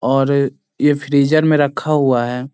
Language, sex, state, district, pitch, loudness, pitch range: Hindi, male, Bihar, Sitamarhi, 140 Hz, -16 LUFS, 135-145 Hz